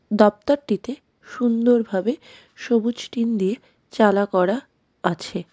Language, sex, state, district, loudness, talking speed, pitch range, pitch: Bengali, female, West Bengal, Darjeeling, -21 LUFS, 85 wpm, 195-240 Hz, 220 Hz